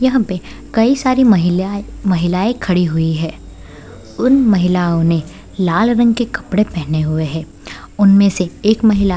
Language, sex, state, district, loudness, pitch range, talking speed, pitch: Hindi, female, Bihar, Sitamarhi, -15 LUFS, 170-225 Hz, 155 wpm, 190 Hz